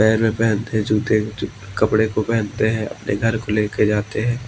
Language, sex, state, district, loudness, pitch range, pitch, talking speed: Hindi, male, Maharashtra, Washim, -20 LUFS, 105-110 Hz, 110 Hz, 215 wpm